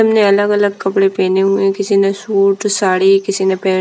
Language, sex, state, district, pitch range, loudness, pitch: Hindi, female, Punjab, Fazilka, 195-200 Hz, -13 LUFS, 195 Hz